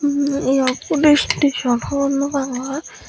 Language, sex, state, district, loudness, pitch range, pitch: Chakma, female, Tripura, Dhalai, -18 LUFS, 265-285 Hz, 280 Hz